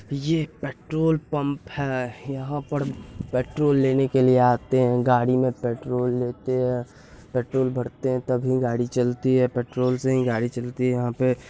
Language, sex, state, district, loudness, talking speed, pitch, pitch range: Hindi, male, Bihar, Purnia, -24 LUFS, 165 wpm, 125 Hz, 125-135 Hz